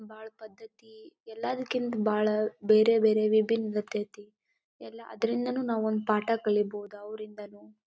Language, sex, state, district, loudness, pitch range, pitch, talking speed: Kannada, female, Karnataka, Dharwad, -28 LUFS, 210-225 Hz, 220 Hz, 130 wpm